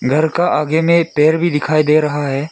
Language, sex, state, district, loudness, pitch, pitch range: Hindi, male, Arunachal Pradesh, Lower Dibang Valley, -14 LUFS, 155 Hz, 150-165 Hz